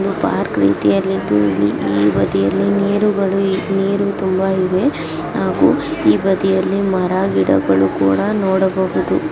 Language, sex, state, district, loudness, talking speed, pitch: Kannada, female, Karnataka, Chamarajanagar, -16 LUFS, 115 wpm, 185 Hz